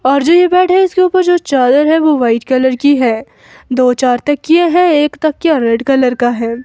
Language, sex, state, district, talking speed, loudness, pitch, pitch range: Hindi, female, Himachal Pradesh, Shimla, 225 wpm, -11 LUFS, 285 Hz, 250-335 Hz